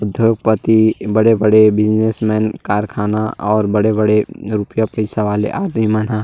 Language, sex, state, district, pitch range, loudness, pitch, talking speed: Chhattisgarhi, male, Chhattisgarh, Rajnandgaon, 105-110 Hz, -15 LUFS, 110 Hz, 135 wpm